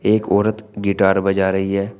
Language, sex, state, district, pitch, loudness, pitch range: Hindi, male, Uttar Pradesh, Shamli, 100 Hz, -18 LUFS, 95-105 Hz